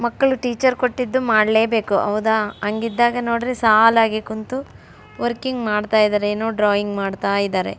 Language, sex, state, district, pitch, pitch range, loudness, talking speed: Kannada, female, Karnataka, Raichur, 220 Hz, 210-240 Hz, -19 LUFS, 125 wpm